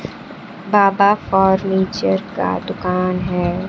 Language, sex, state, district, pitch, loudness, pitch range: Hindi, female, Bihar, Kaimur, 190 Hz, -17 LUFS, 180-195 Hz